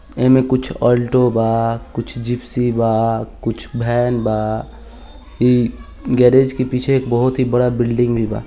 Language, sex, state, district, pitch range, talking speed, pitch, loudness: Hindi, male, Bihar, East Champaran, 115-125 Hz, 135 wpm, 120 Hz, -17 LUFS